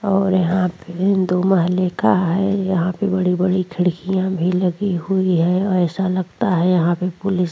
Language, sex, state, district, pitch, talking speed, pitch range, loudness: Hindi, female, Goa, North and South Goa, 185 Hz, 175 wpm, 180-190 Hz, -18 LUFS